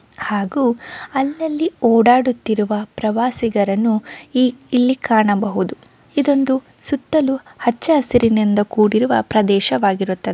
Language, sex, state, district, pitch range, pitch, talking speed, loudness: Kannada, female, Karnataka, Mysore, 215-270 Hz, 240 Hz, 70 wpm, -17 LUFS